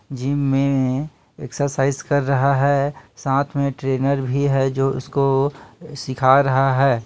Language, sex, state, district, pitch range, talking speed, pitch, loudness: Hindi, male, Chhattisgarh, Kabirdham, 135-140 Hz, 135 wpm, 135 Hz, -19 LUFS